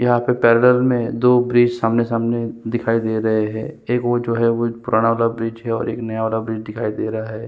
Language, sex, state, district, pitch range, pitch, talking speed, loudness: Hindi, male, Chhattisgarh, Sukma, 110-120 Hz, 115 Hz, 240 wpm, -19 LUFS